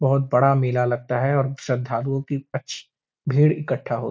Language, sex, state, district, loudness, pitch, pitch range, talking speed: Hindi, male, Uttar Pradesh, Deoria, -22 LUFS, 135 Hz, 125-140 Hz, 190 wpm